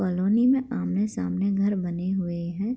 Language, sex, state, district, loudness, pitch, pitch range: Hindi, female, Bihar, Begusarai, -25 LUFS, 185 Hz, 170-200 Hz